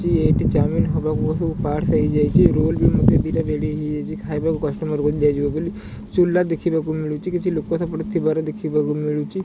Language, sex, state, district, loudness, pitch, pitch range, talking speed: Odia, male, Odisha, Khordha, -20 LUFS, 155 Hz, 150-165 Hz, 180 wpm